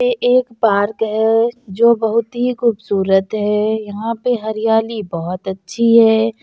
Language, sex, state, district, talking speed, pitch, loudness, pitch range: Hindi, female, Bihar, Bhagalpur, 140 wpm, 225 Hz, -16 LUFS, 210-235 Hz